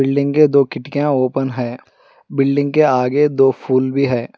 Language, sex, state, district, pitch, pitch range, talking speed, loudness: Hindi, male, Telangana, Hyderabad, 135 Hz, 130-145 Hz, 180 wpm, -16 LUFS